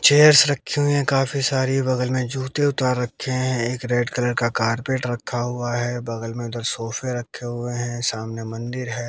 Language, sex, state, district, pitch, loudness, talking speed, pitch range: Hindi, male, Haryana, Jhajjar, 120 Hz, -22 LUFS, 200 wpm, 120-130 Hz